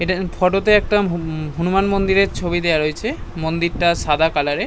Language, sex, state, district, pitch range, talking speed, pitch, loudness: Bengali, male, West Bengal, North 24 Parganas, 160-195 Hz, 180 wpm, 175 Hz, -18 LUFS